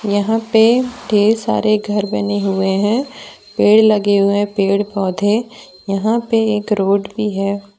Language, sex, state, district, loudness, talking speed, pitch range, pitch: Hindi, female, Jharkhand, Deoghar, -16 LUFS, 155 wpm, 200-220 Hz, 205 Hz